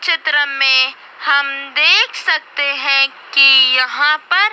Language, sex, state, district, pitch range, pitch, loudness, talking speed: Hindi, female, Madhya Pradesh, Dhar, 275-310 Hz, 280 Hz, -12 LUFS, 120 wpm